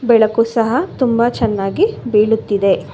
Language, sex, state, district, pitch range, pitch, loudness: Kannada, female, Karnataka, Bangalore, 215-245 Hz, 230 Hz, -15 LUFS